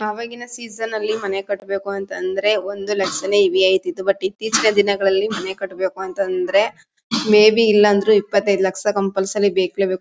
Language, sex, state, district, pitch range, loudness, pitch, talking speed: Kannada, female, Karnataka, Mysore, 190-215 Hz, -18 LUFS, 200 Hz, 130 wpm